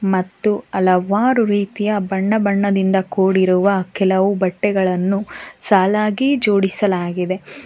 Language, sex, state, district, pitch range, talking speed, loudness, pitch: Kannada, female, Karnataka, Bangalore, 190-205 Hz, 80 wpm, -17 LUFS, 195 Hz